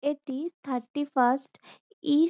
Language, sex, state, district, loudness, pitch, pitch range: Bengali, female, West Bengal, North 24 Parganas, -29 LUFS, 290 Hz, 265-305 Hz